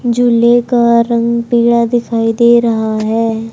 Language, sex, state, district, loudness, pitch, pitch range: Hindi, male, Haryana, Charkhi Dadri, -12 LUFS, 235 Hz, 225-235 Hz